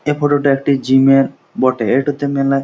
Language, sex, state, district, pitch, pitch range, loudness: Bengali, male, West Bengal, Jhargram, 135 Hz, 135-145 Hz, -14 LUFS